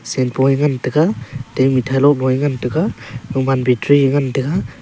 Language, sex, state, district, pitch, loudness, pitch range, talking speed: Wancho, male, Arunachal Pradesh, Longding, 135 Hz, -16 LUFS, 125-140 Hz, 135 wpm